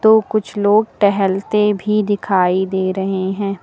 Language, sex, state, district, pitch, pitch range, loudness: Hindi, female, Uttar Pradesh, Lucknow, 200 Hz, 190-210 Hz, -16 LUFS